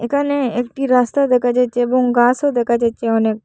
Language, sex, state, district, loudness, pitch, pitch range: Bengali, female, Assam, Hailakandi, -16 LUFS, 245 Hz, 235-260 Hz